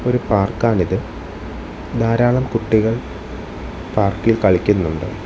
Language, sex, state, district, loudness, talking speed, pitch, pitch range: Malayalam, male, Kerala, Thiruvananthapuram, -18 LUFS, 70 wpm, 110 Hz, 95-115 Hz